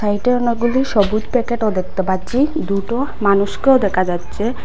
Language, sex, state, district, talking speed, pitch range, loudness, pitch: Bengali, female, Assam, Hailakandi, 130 wpm, 200-245 Hz, -17 LUFS, 215 Hz